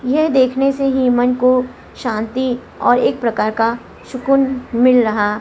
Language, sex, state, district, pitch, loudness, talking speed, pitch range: Hindi, female, Gujarat, Gandhinagar, 250 Hz, -16 LUFS, 155 wpm, 235-260 Hz